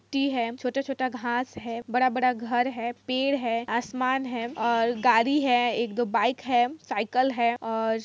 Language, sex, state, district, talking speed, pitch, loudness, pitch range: Hindi, female, Jharkhand, Jamtara, 180 wpm, 245 Hz, -26 LUFS, 235-255 Hz